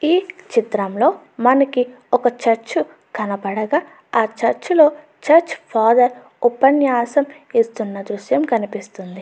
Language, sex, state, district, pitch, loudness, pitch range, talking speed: Telugu, female, Andhra Pradesh, Anantapur, 245 Hz, -18 LUFS, 220-290 Hz, 105 wpm